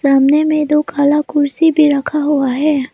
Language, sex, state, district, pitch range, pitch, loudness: Hindi, female, Arunachal Pradesh, Lower Dibang Valley, 280-300 Hz, 290 Hz, -13 LUFS